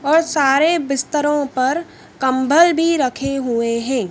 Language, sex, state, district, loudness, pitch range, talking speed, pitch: Hindi, female, Madhya Pradesh, Dhar, -17 LUFS, 260-315 Hz, 130 wpm, 275 Hz